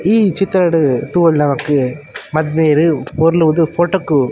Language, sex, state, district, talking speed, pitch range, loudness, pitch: Tulu, male, Karnataka, Dakshina Kannada, 140 wpm, 145-170 Hz, -14 LUFS, 160 Hz